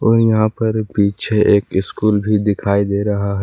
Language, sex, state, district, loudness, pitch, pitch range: Hindi, male, Jharkhand, Palamu, -16 LUFS, 105 Hz, 100-110 Hz